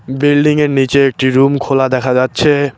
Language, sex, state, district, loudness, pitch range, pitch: Bengali, male, West Bengal, Cooch Behar, -12 LUFS, 130-145 Hz, 135 Hz